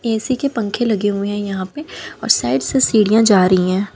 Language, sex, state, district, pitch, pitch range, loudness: Hindi, female, Haryana, Jhajjar, 210 Hz, 200-235 Hz, -16 LUFS